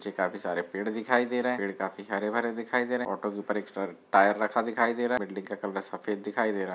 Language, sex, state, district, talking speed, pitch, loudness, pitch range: Hindi, male, Bihar, Darbhanga, 295 wpm, 105 Hz, -29 LUFS, 100-115 Hz